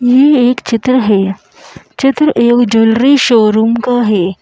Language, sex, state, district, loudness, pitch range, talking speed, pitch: Hindi, female, Madhya Pradesh, Bhopal, -10 LUFS, 220-255 Hz, 135 wpm, 240 Hz